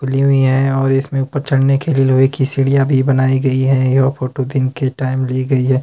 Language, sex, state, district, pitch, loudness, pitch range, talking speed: Hindi, male, Himachal Pradesh, Shimla, 135 Hz, -15 LUFS, 130-135 Hz, 245 wpm